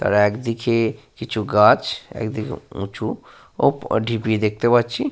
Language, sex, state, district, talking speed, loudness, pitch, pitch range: Bengali, male, Jharkhand, Sahebganj, 115 wpm, -20 LUFS, 110 Hz, 105-115 Hz